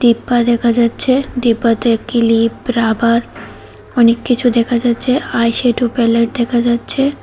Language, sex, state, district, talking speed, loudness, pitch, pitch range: Bengali, female, Tripura, West Tripura, 115 wpm, -14 LUFS, 235 Hz, 230-245 Hz